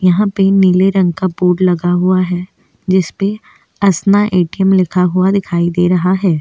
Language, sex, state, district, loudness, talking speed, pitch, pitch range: Hindi, female, Chhattisgarh, Bastar, -13 LUFS, 195 wpm, 185 Hz, 180-195 Hz